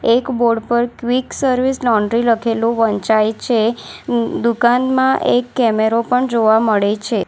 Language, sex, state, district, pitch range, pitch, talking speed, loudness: Gujarati, female, Gujarat, Valsad, 225-245 Hz, 235 Hz, 130 wpm, -16 LUFS